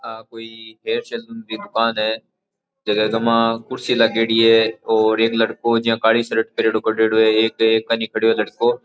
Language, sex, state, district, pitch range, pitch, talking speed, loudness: Rajasthani, male, Rajasthan, Churu, 110-115 Hz, 115 Hz, 175 wpm, -18 LUFS